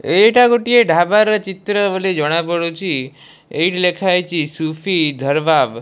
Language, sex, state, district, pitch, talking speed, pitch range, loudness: Odia, male, Odisha, Malkangiri, 180 Hz, 105 wpm, 160-205 Hz, -15 LUFS